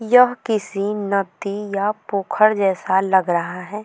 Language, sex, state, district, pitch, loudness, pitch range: Hindi, female, Bihar, Vaishali, 200 Hz, -19 LUFS, 190-215 Hz